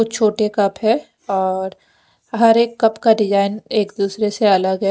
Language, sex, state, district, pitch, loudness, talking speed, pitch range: Hindi, female, Punjab, Fazilka, 210 Hz, -17 LUFS, 170 wpm, 200-225 Hz